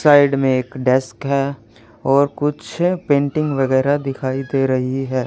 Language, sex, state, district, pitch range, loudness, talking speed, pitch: Hindi, male, Haryana, Charkhi Dadri, 130-145 Hz, -18 LUFS, 150 wpm, 135 Hz